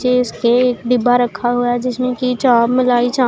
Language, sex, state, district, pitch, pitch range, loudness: Hindi, female, Punjab, Pathankot, 245 Hz, 245-250 Hz, -15 LUFS